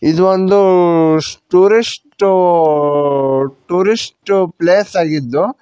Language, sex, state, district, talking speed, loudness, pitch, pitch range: Kannada, male, Karnataka, Koppal, 65 wpm, -13 LUFS, 180 Hz, 155-195 Hz